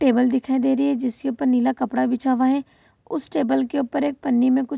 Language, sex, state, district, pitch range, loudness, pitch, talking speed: Hindi, female, Bihar, Saharsa, 255-275 Hz, -21 LUFS, 265 Hz, 275 wpm